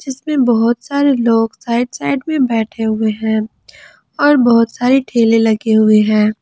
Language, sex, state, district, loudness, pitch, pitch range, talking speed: Hindi, female, Jharkhand, Ranchi, -14 LUFS, 230 Hz, 220-260 Hz, 160 wpm